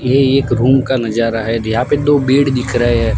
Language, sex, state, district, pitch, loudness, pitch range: Hindi, male, Gujarat, Gandhinagar, 125 Hz, -14 LUFS, 115-135 Hz